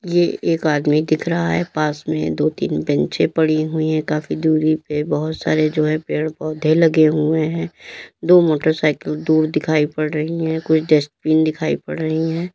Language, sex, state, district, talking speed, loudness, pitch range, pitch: Hindi, female, Uttar Pradesh, Lalitpur, 185 wpm, -18 LUFS, 155-160 Hz, 155 Hz